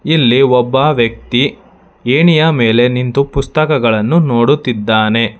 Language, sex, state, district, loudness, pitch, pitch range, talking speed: Kannada, male, Karnataka, Bangalore, -12 LUFS, 125 Hz, 115-150 Hz, 90 wpm